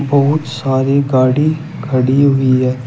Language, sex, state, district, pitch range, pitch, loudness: Hindi, male, Uttar Pradesh, Shamli, 130-140 Hz, 135 Hz, -14 LUFS